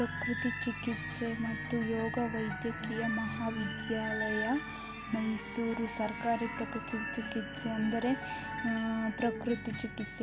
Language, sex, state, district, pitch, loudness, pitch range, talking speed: Kannada, male, Karnataka, Mysore, 230 Hz, -35 LUFS, 220-235 Hz, 80 wpm